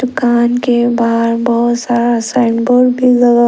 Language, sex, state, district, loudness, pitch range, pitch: Hindi, female, Arunachal Pradesh, Lower Dibang Valley, -12 LUFS, 235-245 Hz, 240 Hz